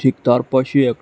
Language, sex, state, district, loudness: Bengali, male, Tripura, West Tripura, -16 LUFS